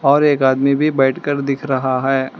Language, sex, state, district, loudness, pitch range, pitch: Hindi, female, Telangana, Hyderabad, -16 LUFS, 130-145 Hz, 135 Hz